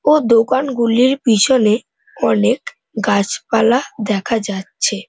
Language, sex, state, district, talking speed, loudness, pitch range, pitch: Bengali, male, West Bengal, North 24 Parganas, 95 wpm, -16 LUFS, 210-260 Hz, 230 Hz